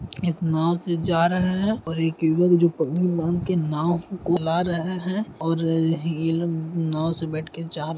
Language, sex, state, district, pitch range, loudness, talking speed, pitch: Hindi, male, Uttar Pradesh, Deoria, 160-175 Hz, -23 LUFS, 195 wpm, 165 Hz